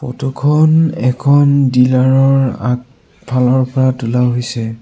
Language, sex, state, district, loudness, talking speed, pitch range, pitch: Assamese, male, Assam, Sonitpur, -13 LUFS, 85 wpm, 125-135 Hz, 130 Hz